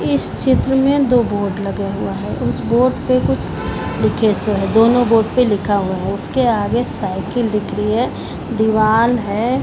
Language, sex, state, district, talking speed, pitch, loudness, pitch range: Hindi, female, Bihar, Purnia, 180 wpm, 220 Hz, -17 LUFS, 205-245 Hz